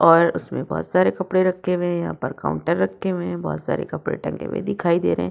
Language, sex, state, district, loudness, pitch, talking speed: Hindi, female, Uttar Pradesh, Budaun, -22 LUFS, 170 Hz, 260 wpm